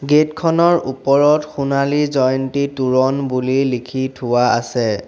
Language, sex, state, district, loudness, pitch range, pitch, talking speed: Assamese, male, Assam, Sonitpur, -17 LUFS, 130-145 Hz, 135 Hz, 120 wpm